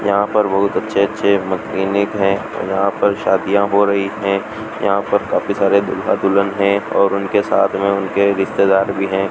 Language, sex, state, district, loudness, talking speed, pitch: Hindi, male, Rajasthan, Bikaner, -16 LUFS, 180 wpm, 100 Hz